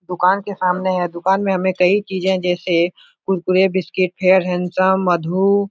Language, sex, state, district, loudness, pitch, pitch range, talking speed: Hindi, male, Bihar, Supaul, -17 LUFS, 185 Hz, 180-190 Hz, 155 wpm